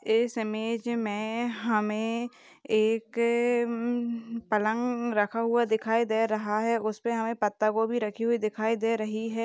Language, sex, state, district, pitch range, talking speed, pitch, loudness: Hindi, female, Uttar Pradesh, Jalaun, 215-235 Hz, 145 wpm, 225 Hz, -28 LUFS